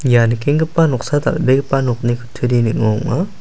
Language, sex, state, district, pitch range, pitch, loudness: Garo, male, Meghalaya, South Garo Hills, 120-145 Hz, 130 Hz, -16 LUFS